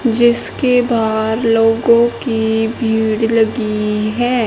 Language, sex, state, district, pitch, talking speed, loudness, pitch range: Hindi, male, Haryana, Charkhi Dadri, 225 Hz, 95 wpm, -15 LUFS, 220-235 Hz